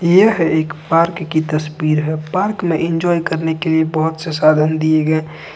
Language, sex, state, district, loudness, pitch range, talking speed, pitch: Hindi, male, Jharkhand, Ranchi, -16 LUFS, 155-165 Hz, 185 wpm, 160 Hz